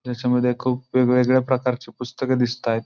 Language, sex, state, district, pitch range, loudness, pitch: Marathi, male, Maharashtra, Pune, 125-130 Hz, -21 LUFS, 125 Hz